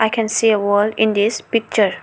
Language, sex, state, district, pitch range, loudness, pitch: English, female, Arunachal Pradesh, Lower Dibang Valley, 210-225 Hz, -17 LUFS, 220 Hz